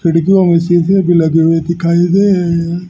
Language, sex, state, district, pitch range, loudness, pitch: Hindi, male, Haryana, Jhajjar, 170-180 Hz, -11 LUFS, 170 Hz